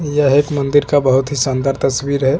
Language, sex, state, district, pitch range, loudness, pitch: Hindi, male, Chhattisgarh, Bastar, 135-145 Hz, -15 LUFS, 140 Hz